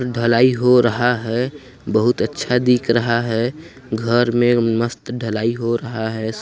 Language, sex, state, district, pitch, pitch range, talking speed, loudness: Hindi, male, Chhattisgarh, Sarguja, 120 Hz, 115-125 Hz, 160 wpm, -18 LUFS